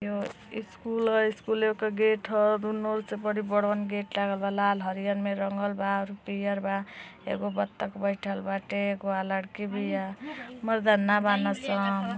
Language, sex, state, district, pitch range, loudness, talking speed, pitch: Hindi, female, Uttar Pradesh, Deoria, 195-215 Hz, -29 LUFS, 140 wpm, 200 Hz